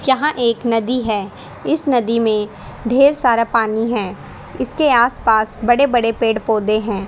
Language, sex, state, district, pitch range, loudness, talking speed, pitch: Hindi, female, Haryana, Charkhi Dadri, 220-245 Hz, -16 LUFS, 160 wpm, 230 Hz